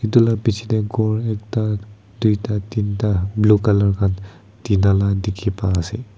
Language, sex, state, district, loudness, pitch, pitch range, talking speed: Nagamese, male, Nagaland, Kohima, -19 LUFS, 105 Hz, 100-110 Hz, 155 wpm